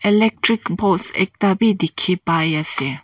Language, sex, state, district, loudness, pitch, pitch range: Nagamese, female, Nagaland, Kohima, -16 LUFS, 190 Hz, 165-205 Hz